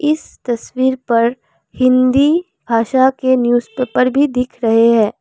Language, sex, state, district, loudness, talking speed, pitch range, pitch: Hindi, female, Assam, Kamrup Metropolitan, -15 LUFS, 125 wpm, 235-260 Hz, 255 Hz